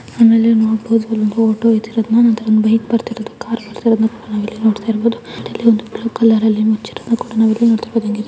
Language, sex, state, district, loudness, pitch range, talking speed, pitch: Kannada, female, Karnataka, Dakshina Kannada, -15 LUFS, 220-230 Hz, 190 wpm, 225 Hz